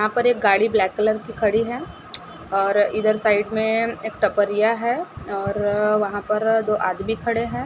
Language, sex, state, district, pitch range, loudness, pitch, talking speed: Hindi, female, Maharashtra, Gondia, 205-225 Hz, -21 LUFS, 215 Hz, 180 wpm